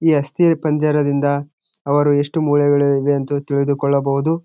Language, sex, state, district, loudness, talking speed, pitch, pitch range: Kannada, male, Karnataka, Gulbarga, -17 LUFS, 120 wpm, 145 Hz, 140-155 Hz